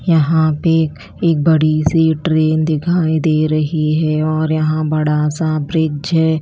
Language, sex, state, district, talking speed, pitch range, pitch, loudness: Hindi, female, Chhattisgarh, Raipur, 150 wpm, 155-160 Hz, 155 Hz, -15 LUFS